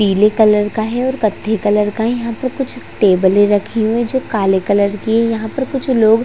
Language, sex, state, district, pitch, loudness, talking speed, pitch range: Hindi, female, Chhattisgarh, Raigarh, 220 Hz, -15 LUFS, 230 wpm, 205-240 Hz